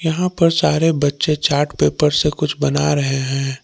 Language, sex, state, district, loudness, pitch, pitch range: Hindi, male, Jharkhand, Palamu, -17 LUFS, 150 Hz, 135-160 Hz